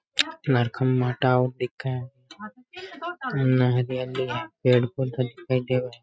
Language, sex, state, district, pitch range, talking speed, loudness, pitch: Rajasthani, male, Rajasthan, Nagaur, 125-140 Hz, 120 wpm, -25 LUFS, 130 Hz